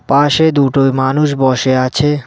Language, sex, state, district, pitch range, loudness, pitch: Bengali, male, West Bengal, Cooch Behar, 130-145 Hz, -12 LUFS, 135 Hz